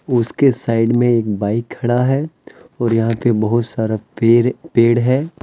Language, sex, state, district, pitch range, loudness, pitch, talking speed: Hindi, male, Jharkhand, Deoghar, 115-125 Hz, -16 LUFS, 120 Hz, 165 wpm